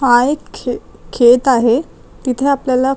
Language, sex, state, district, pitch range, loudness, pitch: Marathi, female, Maharashtra, Chandrapur, 245-275 Hz, -14 LUFS, 260 Hz